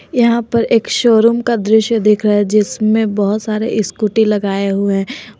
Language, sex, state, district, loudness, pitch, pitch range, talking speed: Hindi, female, Jharkhand, Garhwa, -14 LUFS, 215 Hz, 210-230 Hz, 175 wpm